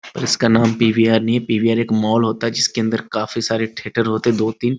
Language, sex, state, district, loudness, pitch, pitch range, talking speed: Hindi, male, Bihar, Muzaffarpur, -17 LUFS, 115 Hz, 110-115 Hz, 240 wpm